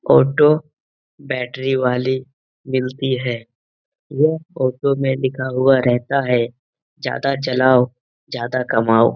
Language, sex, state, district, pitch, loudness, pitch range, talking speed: Hindi, male, Bihar, Lakhisarai, 130 Hz, -18 LUFS, 125-135 Hz, 105 wpm